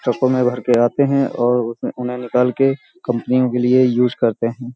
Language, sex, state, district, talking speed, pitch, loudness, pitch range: Hindi, male, Uttar Pradesh, Hamirpur, 240 wpm, 125 Hz, -17 LUFS, 120-130 Hz